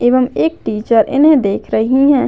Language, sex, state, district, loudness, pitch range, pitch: Hindi, female, Maharashtra, Dhule, -13 LUFS, 220-280 Hz, 250 Hz